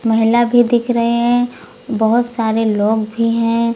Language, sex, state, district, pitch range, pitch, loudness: Hindi, female, Uttar Pradesh, Lucknow, 225-240 Hz, 230 Hz, -15 LUFS